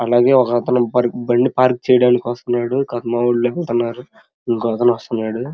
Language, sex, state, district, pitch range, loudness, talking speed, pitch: Telugu, male, Andhra Pradesh, Krishna, 120-125 Hz, -17 LUFS, 120 wpm, 120 Hz